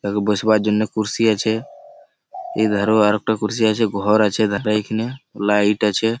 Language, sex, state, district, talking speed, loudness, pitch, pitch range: Bengali, male, West Bengal, Malda, 135 wpm, -19 LUFS, 110 Hz, 105-110 Hz